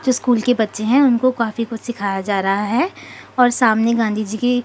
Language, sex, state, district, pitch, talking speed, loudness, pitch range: Hindi, female, Chandigarh, Chandigarh, 230 Hz, 205 wpm, -18 LUFS, 215-245 Hz